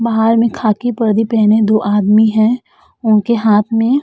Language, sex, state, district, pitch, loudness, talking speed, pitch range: Hindi, female, Uttar Pradesh, Etah, 225 Hz, -13 LUFS, 180 wpm, 215-235 Hz